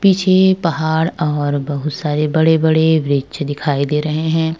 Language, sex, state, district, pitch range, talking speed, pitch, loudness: Hindi, female, Uttar Pradesh, Jyotiba Phule Nagar, 145-160 Hz, 145 wpm, 160 Hz, -16 LUFS